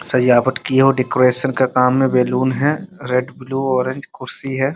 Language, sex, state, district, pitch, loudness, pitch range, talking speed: Hindi, male, Bihar, Muzaffarpur, 130 Hz, -16 LUFS, 125-135 Hz, 175 wpm